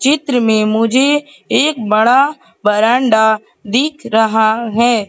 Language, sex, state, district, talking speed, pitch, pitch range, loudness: Hindi, female, Madhya Pradesh, Katni, 105 wpm, 230 Hz, 220-270 Hz, -13 LUFS